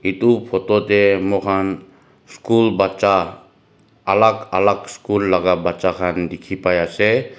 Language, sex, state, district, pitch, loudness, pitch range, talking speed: Nagamese, male, Nagaland, Dimapur, 95 Hz, -17 LUFS, 95-105 Hz, 120 wpm